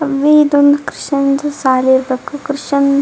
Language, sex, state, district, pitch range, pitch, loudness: Kannada, female, Karnataka, Dharwad, 270-290 Hz, 280 Hz, -13 LUFS